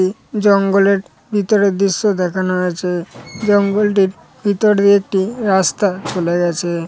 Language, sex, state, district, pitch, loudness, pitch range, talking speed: Bengali, female, West Bengal, North 24 Parganas, 195 Hz, -16 LUFS, 180-205 Hz, 105 wpm